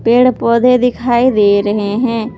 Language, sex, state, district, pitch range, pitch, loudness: Hindi, female, Jharkhand, Palamu, 210-250 Hz, 235 Hz, -12 LUFS